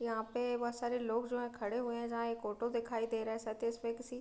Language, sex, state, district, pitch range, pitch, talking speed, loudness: Hindi, female, Bihar, Gopalganj, 225-240 Hz, 235 Hz, 255 wpm, -38 LUFS